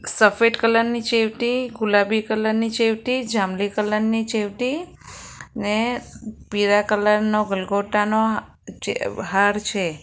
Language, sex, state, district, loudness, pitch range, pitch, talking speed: Gujarati, female, Gujarat, Valsad, -21 LUFS, 205-230 Hz, 215 Hz, 120 wpm